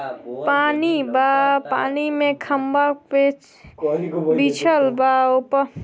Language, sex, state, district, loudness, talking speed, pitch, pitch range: Bhojpuri, female, Uttar Pradesh, Ghazipur, -19 LUFS, 115 wpm, 275 Hz, 260-290 Hz